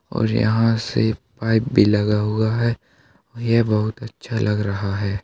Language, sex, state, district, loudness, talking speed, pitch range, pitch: Hindi, male, Uttar Pradesh, Hamirpur, -20 LUFS, 160 wpm, 105-115 Hz, 110 Hz